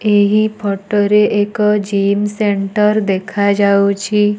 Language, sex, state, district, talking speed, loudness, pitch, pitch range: Odia, female, Odisha, Nuapada, 95 wpm, -14 LUFS, 205 Hz, 200-210 Hz